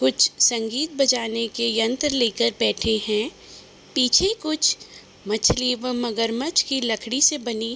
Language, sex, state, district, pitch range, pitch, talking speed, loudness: Hindi, female, Uttar Pradesh, Budaun, 225-270 Hz, 235 Hz, 140 wpm, -21 LUFS